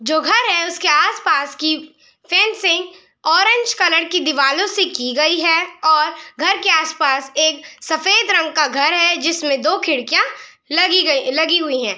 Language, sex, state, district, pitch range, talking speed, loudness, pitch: Hindi, female, Bihar, Araria, 305-360 Hz, 170 wpm, -15 LUFS, 320 Hz